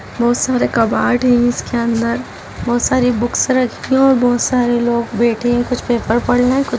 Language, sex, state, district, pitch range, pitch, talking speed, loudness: Hindi, female, Bihar, Vaishali, 235-250 Hz, 240 Hz, 205 wpm, -15 LUFS